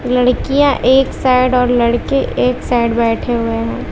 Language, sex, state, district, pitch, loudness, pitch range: Hindi, female, Bihar, West Champaran, 250 Hz, -14 LUFS, 235-260 Hz